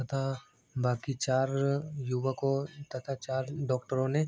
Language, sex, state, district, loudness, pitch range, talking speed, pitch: Hindi, male, Bihar, Begusarai, -33 LUFS, 130-140 Hz, 125 wpm, 135 Hz